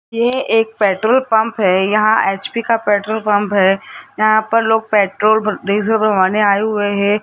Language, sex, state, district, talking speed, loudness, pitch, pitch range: Hindi, male, Rajasthan, Jaipur, 165 wpm, -15 LUFS, 215 Hz, 205-225 Hz